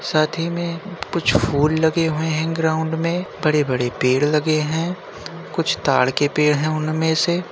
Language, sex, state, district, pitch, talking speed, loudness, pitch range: Hindi, male, Uttar Pradesh, Jyotiba Phule Nagar, 155 Hz, 170 wpm, -20 LUFS, 150-165 Hz